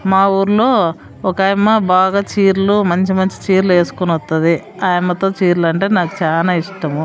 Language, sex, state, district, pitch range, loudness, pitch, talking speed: Telugu, female, Andhra Pradesh, Sri Satya Sai, 175-195 Hz, -14 LUFS, 190 Hz, 145 wpm